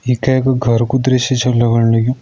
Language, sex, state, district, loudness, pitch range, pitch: Hindi, male, Uttarakhand, Uttarkashi, -14 LUFS, 120-130 Hz, 125 Hz